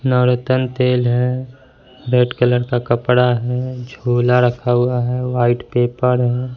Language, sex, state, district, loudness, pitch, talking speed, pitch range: Hindi, male, Bihar, Katihar, -17 LUFS, 125 Hz, 135 wpm, 120-125 Hz